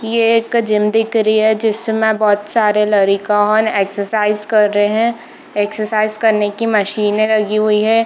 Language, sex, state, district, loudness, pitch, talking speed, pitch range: Hindi, female, Bihar, East Champaran, -14 LUFS, 215 Hz, 155 wpm, 210-225 Hz